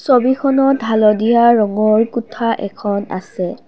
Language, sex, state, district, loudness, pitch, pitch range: Assamese, female, Assam, Kamrup Metropolitan, -15 LUFS, 225 Hz, 210-240 Hz